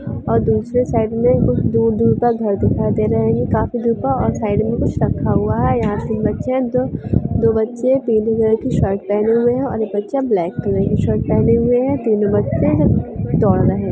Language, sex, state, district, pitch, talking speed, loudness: Hindi, female, Bihar, Sitamarhi, 225 Hz, 225 wpm, -17 LUFS